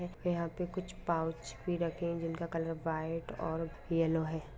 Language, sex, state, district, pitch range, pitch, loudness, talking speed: Hindi, female, Jharkhand, Sahebganj, 160-170 Hz, 165 Hz, -36 LUFS, 170 wpm